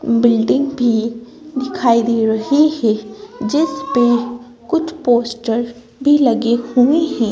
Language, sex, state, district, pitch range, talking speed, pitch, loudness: Hindi, female, Madhya Pradesh, Bhopal, 235-280 Hz, 115 wpm, 240 Hz, -16 LUFS